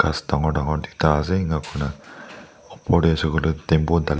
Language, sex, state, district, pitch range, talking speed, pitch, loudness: Nagamese, male, Nagaland, Dimapur, 75-80 Hz, 155 wpm, 80 Hz, -21 LUFS